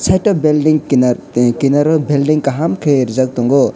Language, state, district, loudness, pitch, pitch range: Kokborok, Tripura, West Tripura, -13 LUFS, 140 Hz, 130-155 Hz